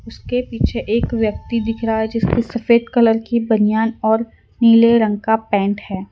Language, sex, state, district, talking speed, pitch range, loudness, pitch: Hindi, female, Gujarat, Valsad, 175 wpm, 220-235 Hz, -17 LUFS, 225 Hz